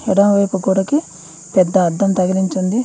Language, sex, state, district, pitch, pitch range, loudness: Telugu, female, Telangana, Mahabubabad, 190 Hz, 185-200 Hz, -16 LUFS